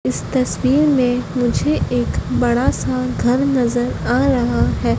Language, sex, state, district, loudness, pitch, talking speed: Hindi, female, Madhya Pradesh, Dhar, -17 LUFS, 245 Hz, 145 wpm